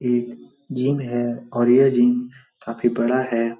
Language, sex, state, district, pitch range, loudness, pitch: Hindi, male, Bihar, Supaul, 120-130 Hz, -20 LUFS, 120 Hz